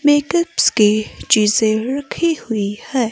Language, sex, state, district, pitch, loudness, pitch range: Hindi, female, Himachal Pradesh, Shimla, 235 Hz, -17 LUFS, 215-290 Hz